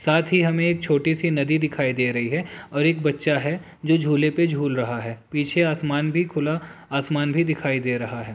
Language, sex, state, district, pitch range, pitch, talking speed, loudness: Hindi, male, Bihar, Darbhanga, 140-160 Hz, 150 Hz, 215 wpm, -22 LUFS